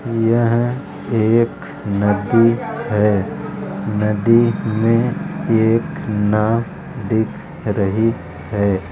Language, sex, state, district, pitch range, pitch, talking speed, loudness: Hindi, male, Uttar Pradesh, Varanasi, 105-115 Hz, 110 Hz, 75 wpm, -18 LUFS